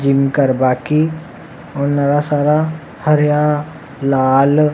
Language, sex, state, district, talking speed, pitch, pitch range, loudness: Rajasthani, male, Rajasthan, Nagaur, 115 wpm, 145 Hz, 135-150 Hz, -15 LUFS